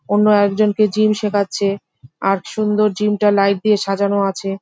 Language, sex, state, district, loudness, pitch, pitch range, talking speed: Bengali, female, West Bengal, Jhargram, -17 LUFS, 205 Hz, 195-210 Hz, 155 wpm